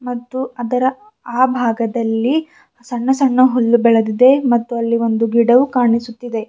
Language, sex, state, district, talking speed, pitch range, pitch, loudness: Kannada, female, Karnataka, Bidar, 120 wpm, 235-255 Hz, 240 Hz, -15 LUFS